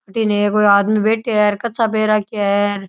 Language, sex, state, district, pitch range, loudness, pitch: Rajasthani, male, Rajasthan, Nagaur, 205-215 Hz, -16 LUFS, 210 Hz